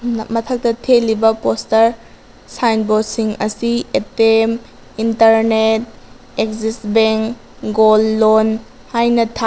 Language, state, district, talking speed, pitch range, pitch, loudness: Manipuri, Manipur, Imphal West, 90 wpm, 220-230 Hz, 225 Hz, -15 LUFS